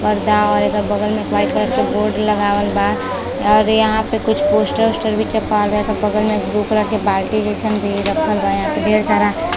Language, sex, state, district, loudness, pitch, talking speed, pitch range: Bhojpuri, female, Uttar Pradesh, Deoria, -16 LUFS, 210 Hz, 220 wpm, 205-215 Hz